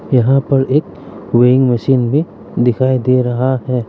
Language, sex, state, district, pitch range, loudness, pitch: Hindi, male, Arunachal Pradesh, Lower Dibang Valley, 125-135 Hz, -14 LUFS, 130 Hz